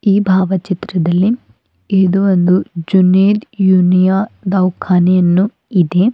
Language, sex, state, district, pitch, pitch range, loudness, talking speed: Kannada, female, Karnataka, Bidar, 185 Hz, 180-195 Hz, -13 LUFS, 80 wpm